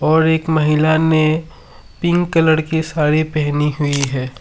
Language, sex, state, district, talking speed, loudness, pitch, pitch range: Hindi, male, Assam, Sonitpur, 150 wpm, -16 LUFS, 155 Hz, 150-160 Hz